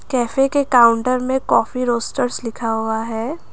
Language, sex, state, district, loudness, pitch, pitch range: Hindi, female, Assam, Kamrup Metropolitan, -18 LUFS, 245 Hz, 230-260 Hz